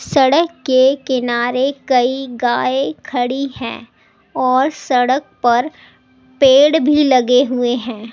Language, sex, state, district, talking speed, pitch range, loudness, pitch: Hindi, female, Delhi, New Delhi, 110 wpm, 250-275 Hz, -15 LUFS, 260 Hz